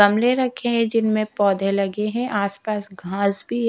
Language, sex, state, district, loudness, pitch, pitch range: Hindi, female, Punjab, Fazilka, -21 LUFS, 210 Hz, 200-230 Hz